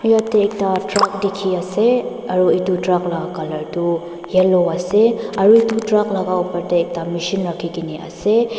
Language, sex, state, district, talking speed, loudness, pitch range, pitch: Nagamese, female, Nagaland, Dimapur, 155 wpm, -18 LUFS, 175-210 Hz, 185 Hz